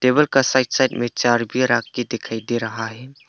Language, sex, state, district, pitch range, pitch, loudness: Hindi, male, Arunachal Pradesh, Papum Pare, 115-130 Hz, 120 Hz, -20 LUFS